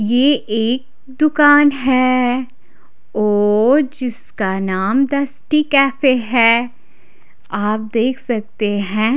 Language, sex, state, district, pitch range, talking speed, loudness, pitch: Hindi, female, Odisha, Khordha, 215-270 Hz, 90 wpm, -16 LUFS, 245 Hz